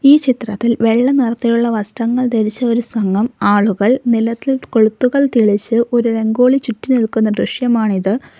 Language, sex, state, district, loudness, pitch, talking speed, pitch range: Malayalam, female, Kerala, Kollam, -15 LUFS, 235 Hz, 120 wpm, 220-250 Hz